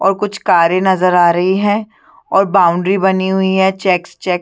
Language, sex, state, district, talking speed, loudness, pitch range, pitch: Hindi, female, Chhattisgarh, Sarguja, 205 wpm, -13 LUFS, 180-195 Hz, 190 Hz